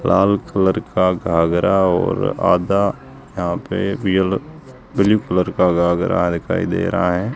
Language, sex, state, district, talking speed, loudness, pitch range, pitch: Hindi, male, Rajasthan, Jaisalmer, 130 wpm, -18 LUFS, 85-100 Hz, 95 Hz